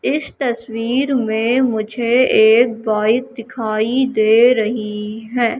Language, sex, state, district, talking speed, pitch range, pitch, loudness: Hindi, female, Madhya Pradesh, Katni, 105 wpm, 220-250 Hz, 230 Hz, -16 LUFS